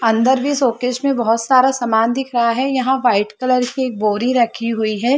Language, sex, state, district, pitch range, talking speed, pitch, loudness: Hindi, female, Chhattisgarh, Sarguja, 230-260 Hz, 230 wpm, 245 Hz, -17 LUFS